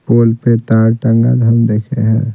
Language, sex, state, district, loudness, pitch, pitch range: Hindi, male, Bihar, Patna, -12 LUFS, 115 Hz, 115-120 Hz